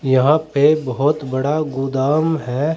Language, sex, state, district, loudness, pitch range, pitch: Hindi, male, Uttar Pradesh, Saharanpur, -17 LUFS, 135-155 Hz, 145 Hz